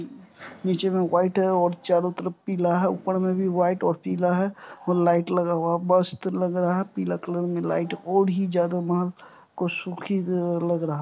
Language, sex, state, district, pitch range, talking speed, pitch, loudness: Hindi, male, Bihar, Supaul, 175-185 Hz, 200 wpm, 180 Hz, -24 LUFS